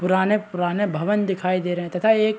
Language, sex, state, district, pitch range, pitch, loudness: Hindi, male, Chhattisgarh, Raigarh, 180-210 Hz, 190 Hz, -22 LUFS